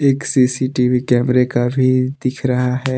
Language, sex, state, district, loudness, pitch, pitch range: Hindi, male, Jharkhand, Deoghar, -16 LUFS, 130 Hz, 125-130 Hz